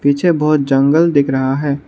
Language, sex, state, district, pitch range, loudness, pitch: Hindi, male, Arunachal Pradesh, Lower Dibang Valley, 135-150 Hz, -14 LUFS, 140 Hz